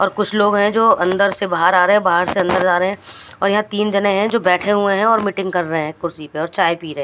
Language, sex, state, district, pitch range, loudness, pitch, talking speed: Hindi, female, Punjab, Fazilka, 175-205 Hz, -16 LUFS, 195 Hz, 315 wpm